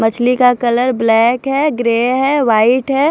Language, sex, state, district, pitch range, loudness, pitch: Hindi, female, Punjab, Fazilka, 235-270 Hz, -13 LUFS, 245 Hz